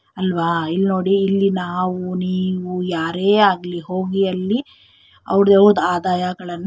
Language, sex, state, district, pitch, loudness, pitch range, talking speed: Kannada, female, Karnataka, Shimoga, 185 Hz, -18 LUFS, 180-195 Hz, 110 wpm